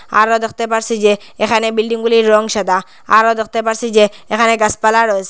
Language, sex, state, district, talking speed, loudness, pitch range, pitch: Bengali, female, Assam, Hailakandi, 180 wpm, -14 LUFS, 215-230 Hz, 220 Hz